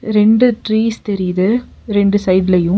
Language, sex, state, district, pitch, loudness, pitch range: Tamil, female, Tamil Nadu, Nilgiris, 205 Hz, -14 LUFS, 190-220 Hz